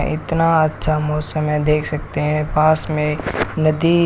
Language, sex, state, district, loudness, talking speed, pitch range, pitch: Hindi, male, Rajasthan, Bikaner, -18 LUFS, 160 wpm, 150-155 Hz, 150 Hz